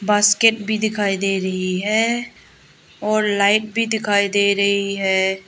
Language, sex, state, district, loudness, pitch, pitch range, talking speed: Hindi, female, Arunachal Pradesh, Lower Dibang Valley, -18 LUFS, 205 Hz, 195-215 Hz, 145 wpm